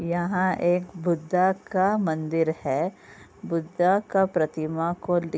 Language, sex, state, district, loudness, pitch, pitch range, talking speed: Hindi, female, Uttar Pradesh, Budaun, -25 LUFS, 175 Hz, 165-185 Hz, 135 wpm